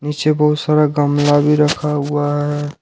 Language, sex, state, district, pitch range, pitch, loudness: Hindi, male, Jharkhand, Ranchi, 145-150 Hz, 150 Hz, -15 LUFS